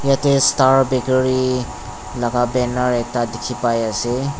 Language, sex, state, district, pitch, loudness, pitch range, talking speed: Nagamese, male, Nagaland, Dimapur, 125 Hz, -18 LUFS, 120-130 Hz, 120 wpm